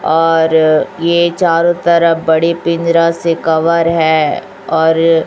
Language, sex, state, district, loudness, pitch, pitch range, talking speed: Hindi, female, Chhattisgarh, Raipur, -12 LUFS, 165 Hz, 160-170 Hz, 115 wpm